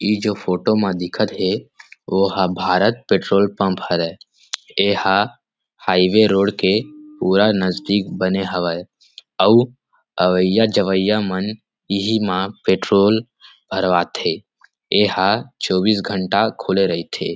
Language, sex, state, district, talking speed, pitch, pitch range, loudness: Chhattisgarhi, male, Chhattisgarh, Rajnandgaon, 115 wpm, 100 Hz, 95-105 Hz, -18 LUFS